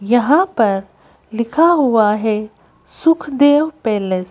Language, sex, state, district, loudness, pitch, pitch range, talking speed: Hindi, female, Madhya Pradesh, Bhopal, -15 LUFS, 235 Hz, 210-295 Hz, 110 wpm